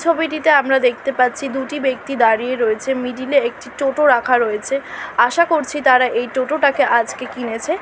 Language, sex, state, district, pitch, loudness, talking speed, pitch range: Bengali, female, West Bengal, Kolkata, 260 Hz, -17 LUFS, 160 wpm, 240-280 Hz